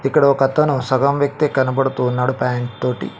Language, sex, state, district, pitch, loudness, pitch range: Telugu, male, Telangana, Mahabubabad, 135 Hz, -18 LUFS, 125-140 Hz